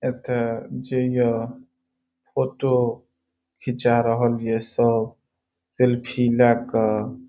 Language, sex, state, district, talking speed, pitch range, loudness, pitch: Maithili, male, Bihar, Saharsa, 75 wpm, 110-125 Hz, -22 LUFS, 120 Hz